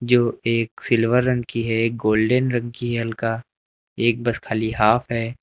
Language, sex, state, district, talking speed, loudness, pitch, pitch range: Hindi, male, Uttar Pradesh, Lucknow, 190 wpm, -21 LUFS, 115 Hz, 115-120 Hz